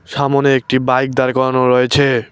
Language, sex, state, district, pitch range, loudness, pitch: Bengali, male, West Bengal, Cooch Behar, 130-135 Hz, -14 LUFS, 130 Hz